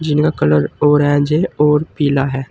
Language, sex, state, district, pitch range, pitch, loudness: Hindi, male, Uttar Pradesh, Saharanpur, 135-150 Hz, 145 Hz, -15 LUFS